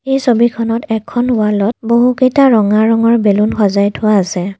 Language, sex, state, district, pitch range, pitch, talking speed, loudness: Assamese, female, Assam, Kamrup Metropolitan, 205-240 Hz, 225 Hz, 155 wpm, -12 LUFS